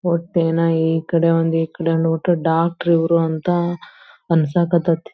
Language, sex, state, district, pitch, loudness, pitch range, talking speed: Kannada, female, Karnataka, Belgaum, 165 Hz, -18 LUFS, 165-170 Hz, 150 wpm